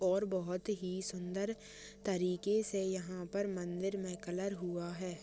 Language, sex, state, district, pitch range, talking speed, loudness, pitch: Hindi, male, Chhattisgarh, Rajnandgaon, 180-200 Hz, 160 wpm, -38 LUFS, 185 Hz